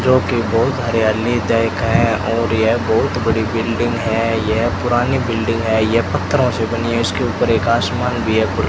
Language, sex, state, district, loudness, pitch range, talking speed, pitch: Hindi, male, Rajasthan, Bikaner, -17 LUFS, 110-120 Hz, 200 wpm, 115 Hz